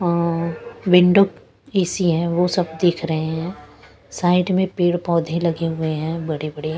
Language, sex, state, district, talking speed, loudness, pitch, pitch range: Hindi, female, Punjab, Pathankot, 170 wpm, -20 LUFS, 170 Hz, 165-180 Hz